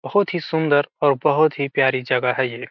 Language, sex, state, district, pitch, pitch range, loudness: Hindi, male, Bihar, Gopalganj, 145 Hz, 130-155 Hz, -19 LUFS